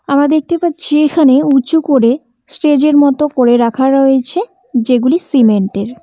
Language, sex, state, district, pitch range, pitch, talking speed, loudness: Bengali, female, West Bengal, Cooch Behar, 245-300 Hz, 275 Hz, 150 wpm, -12 LUFS